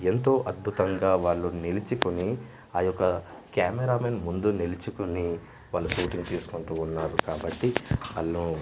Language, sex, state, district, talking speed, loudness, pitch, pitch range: Telugu, male, Andhra Pradesh, Manyam, 110 wpm, -28 LUFS, 90 Hz, 85-105 Hz